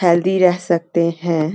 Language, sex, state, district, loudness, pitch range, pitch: Hindi, female, Uttarakhand, Uttarkashi, -17 LUFS, 170-180 Hz, 170 Hz